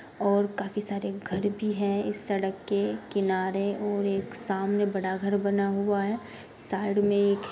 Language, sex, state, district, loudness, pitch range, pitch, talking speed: Hindi, female, Bihar, Gopalganj, -28 LUFS, 195-205 Hz, 200 Hz, 175 wpm